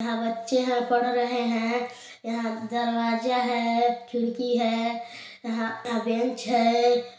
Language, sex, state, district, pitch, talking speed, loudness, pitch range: Hindi, male, Chhattisgarh, Balrampur, 235 Hz, 110 wpm, -26 LUFS, 230-245 Hz